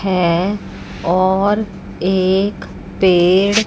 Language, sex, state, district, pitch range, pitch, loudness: Hindi, female, Chandigarh, Chandigarh, 185-200 Hz, 190 Hz, -16 LUFS